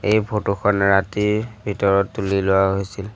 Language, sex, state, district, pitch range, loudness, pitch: Assamese, male, Assam, Sonitpur, 100-105 Hz, -20 LUFS, 100 Hz